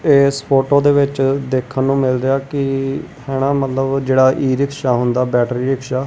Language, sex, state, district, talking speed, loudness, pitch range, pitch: Punjabi, male, Punjab, Kapurthala, 175 wpm, -16 LUFS, 130-140 Hz, 135 Hz